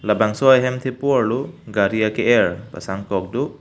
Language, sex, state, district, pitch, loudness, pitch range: Karbi, male, Assam, Karbi Anglong, 110 Hz, -19 LUFS, 100-130 Hz